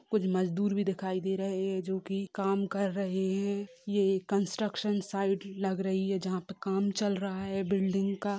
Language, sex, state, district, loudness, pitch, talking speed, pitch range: Hindi, female, Bihar, Sitamarhi, -32 LUFS, 195 Hz, 195 wpm, 190-200 Hz